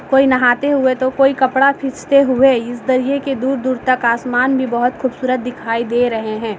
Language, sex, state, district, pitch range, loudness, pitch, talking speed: Hindi, female, Bihar, Sitamarhi, 245-270 Hz, -15 LUFS, 255 Hz, 190 wpm